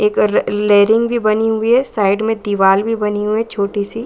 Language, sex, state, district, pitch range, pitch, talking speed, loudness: Hindi, female, Bihar, Saran, 205-225 Hz, 215 Hz, 220 wpm, -15 LUFS